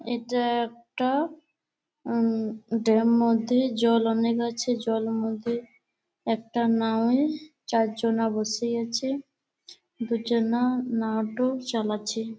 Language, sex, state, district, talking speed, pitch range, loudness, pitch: Bengali, female, West Bengal, Malda, 85 wpm, 225-250 Hz, -26 LUFS, 235 Hz